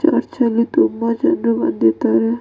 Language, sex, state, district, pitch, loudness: Kannada, female, Karnataka, Dakshina Kannada, 235 Hz, -17 LUFS